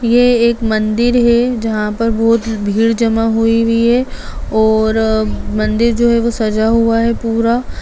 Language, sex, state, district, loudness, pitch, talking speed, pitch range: Hindi, female, Bihar, Jamui, -14 LUFS, 230 Hz, 155 wpm, 220-235 Hz